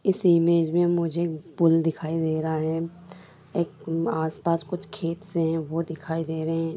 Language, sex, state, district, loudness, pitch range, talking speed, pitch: Hindi, female, Bihar, Sitamarhi, -25 LUFS, 160-170 Hz, 175 wpm, 165 Hz